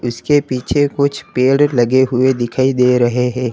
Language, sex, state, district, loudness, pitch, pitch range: Hindi, male, Uttar Pradesh, Lalitpur, -14 LUFS, 130 Hz, 125-140 Hz